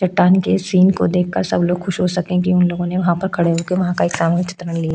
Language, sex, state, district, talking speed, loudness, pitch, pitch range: Hindi, female, Uttarakhand, Tehri Garhwal, 305 wpm, -17 LUFS, 180 Hz, 175-185 Hz